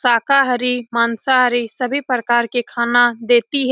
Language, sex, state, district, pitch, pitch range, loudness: Hindi, female, Bihar, Saran, 245 Hz, 235-255 Hz, -16 LUFS